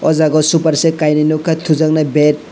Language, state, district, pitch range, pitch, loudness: Kokborok, Tripura, West Tripura, 150-160 Hz, 155 Hz, -13 LUFS